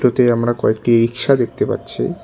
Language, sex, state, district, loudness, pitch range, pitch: Bengali, male, West Bengal, Cooch Behar, -16 LUFS, 115-125 Hz, 120 Hz